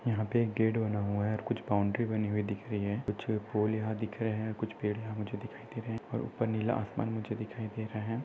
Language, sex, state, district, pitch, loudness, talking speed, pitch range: Hindi, male, Maharashtra, Aurangabad, 110 Hz, -34 LUFS, 270 wpm, 105-115 Hz